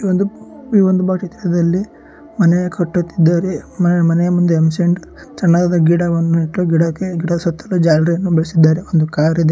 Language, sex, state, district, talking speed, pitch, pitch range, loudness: Kannada, male, Karnataka, Shimoga, 100 wpm, 175 Hz, 165-185 Hz, -15 LUFS